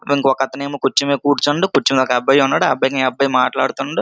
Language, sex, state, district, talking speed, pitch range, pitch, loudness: Telugu, male, Andhra Pradesh, Srikakulam, 225 wpm, 130-140 Hz, 135 Hz, -16 LUFS